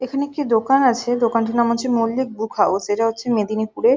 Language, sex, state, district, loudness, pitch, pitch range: Bengali, female, West Bengal, Jhargram, -19 LUFS, 235 Hz, 220-255 Hz